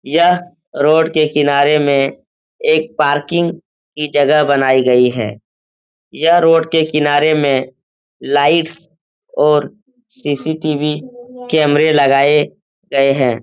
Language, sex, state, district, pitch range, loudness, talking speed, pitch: Hindi, male, Uttar Pradesh, Etah, 140-165 Hz, -14 LUFS, 105 wpm, 150 Hz